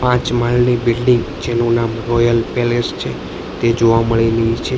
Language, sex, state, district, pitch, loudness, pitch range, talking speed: Gujarati, male, Gujarat, Gandhinagar, 115 Hz, -16 LUFS, 115-120 Hz, 150 wpm